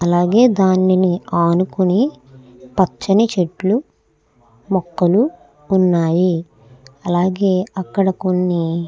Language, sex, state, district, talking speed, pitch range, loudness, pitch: Telugu, female, Andhra Pradesh, Krishna, 65 wpm, 170-195 Hz, -17 LUFS, 185 Hz